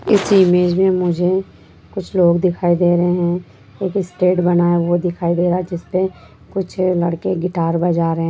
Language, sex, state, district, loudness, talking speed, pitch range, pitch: Hindi, female, Bihar, Sitamarhi, -17 LUFS, 190 wpm, 175-185 Hz, 180 Hz